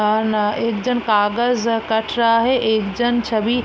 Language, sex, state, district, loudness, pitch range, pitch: Hindi, female, Bihar, East Champaran, -18 LUFS, 215-240 Hz, 225 Hz